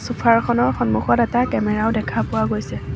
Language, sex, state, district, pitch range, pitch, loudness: Assamese, female, Assam, Sonitpur, 210-240 Hz, 230 Hz, -19 LUFS